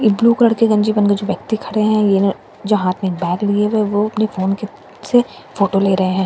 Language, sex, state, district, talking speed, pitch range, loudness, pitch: Hindi, female, Bihar, Katihar, 220 wpm, 195-215 Hz, -16 LUFS, 205 Hz